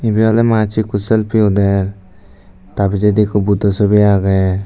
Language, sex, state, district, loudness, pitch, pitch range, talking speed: Chakma, male, Tripura, Dhalai, -14 LUFS, 100 Hz, 95-105 Hz, 155 wpm